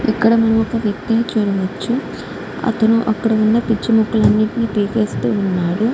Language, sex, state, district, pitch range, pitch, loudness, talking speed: Telugu, female, Andhra Pradesh, Guntur, 215-230 Hz, 225 Hz, -17 LUFS, 130 wpm